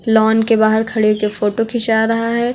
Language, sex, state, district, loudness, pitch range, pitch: Hindi, female, Uttar Pradesh, Lucknow, -15 LUFS, 220-230 Hz, 220 Hz